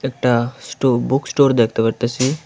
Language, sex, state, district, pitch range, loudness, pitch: Bengali, male, Tripura, West Tripura, 120-135 Hz, -18 LUFS, 130 Hz